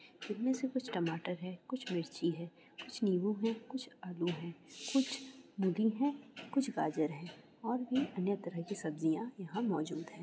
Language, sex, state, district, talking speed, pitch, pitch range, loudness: Hindi, female, Andhra Pradesh, Chittoor, 170 wpm, 200 Hz, 170-250 Hz, -37 LUFS